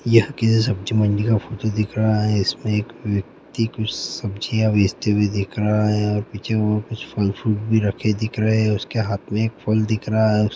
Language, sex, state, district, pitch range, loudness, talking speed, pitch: Hindi, male, Bihar, Gopalganj, 105-110 Hz, -21 LUFS, 215 wpm, 110 Hz